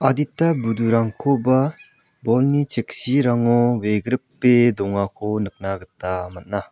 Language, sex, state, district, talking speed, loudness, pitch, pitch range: Garo, male, Meghalaya, South Garo Hills, 80 wpm, -20 LUFS, 120 Hz, 100-135 Hz